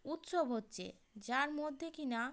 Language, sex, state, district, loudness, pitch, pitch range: Bengali, female, West Bengal, Kolkata, -40 LUFS, 280 Hz, 230-315 Hz